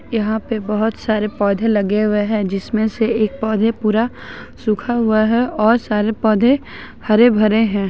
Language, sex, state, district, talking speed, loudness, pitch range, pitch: Hindi, female, Jharkhand, Ranchi, 165 wpm, -17 LUFS, 215-225 Hz, 220 Hz